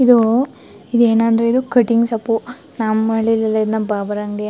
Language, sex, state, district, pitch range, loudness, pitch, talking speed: Kannada, female, Karnataka, Chamarajanagar, 220-240 Hz, -17 LUFS, 225 Hz, 160 wpm